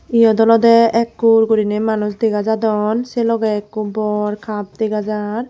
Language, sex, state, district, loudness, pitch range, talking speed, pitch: Chakma, female, Tripura, Unakoti, -16 LUFS, 210-230 Hz, 140 wpm, 220 Hz